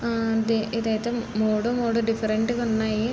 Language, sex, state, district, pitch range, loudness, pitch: Telugu, female, Andhra Pradesh, Srikakulam, 220-235 Hz, -24 LUFS, 225 Hz